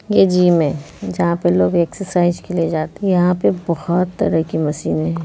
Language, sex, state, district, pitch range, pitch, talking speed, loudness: Hindi, female, Bihar, Muzaffarpur, 160-180 Hz, 170 Hz, 195 wpm, -17 LUFS